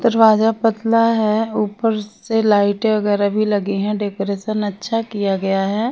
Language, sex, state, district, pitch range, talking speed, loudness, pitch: Hindi, female, Bihar, West Champaran, 205-225 Hz, 150 wpm, -18 LUFS, 215 Hz